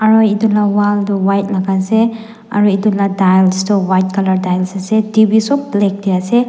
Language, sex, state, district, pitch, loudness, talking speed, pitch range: Nagamese, female, Nagaland, Dimapur, 205 Hz, -13 LUFS, 205 wpm, 190-220 Hz